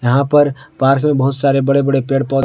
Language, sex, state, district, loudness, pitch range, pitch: Hindi, male, Jharkhand, Ranchi, -14 LUFS, 135-140 Hz, 135 Hz